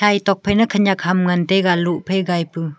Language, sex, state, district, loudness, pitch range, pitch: Wancho, female, Arunachal Pradesh, Longding, -17 LUFS, 175-200 Hz, 185 Hz